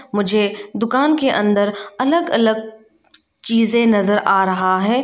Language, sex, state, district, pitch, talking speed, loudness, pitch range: Hindi, female, Arunachal Pradesh, Lower Dibang Valley, 220 Hz, 130 wpm, -17 LUFS, 205-240 Hz